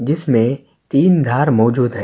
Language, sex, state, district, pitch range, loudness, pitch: Urdu, male, Uttar Pradesh, Budaun, 120-145 Hz, -15 LUFS, 130 Hz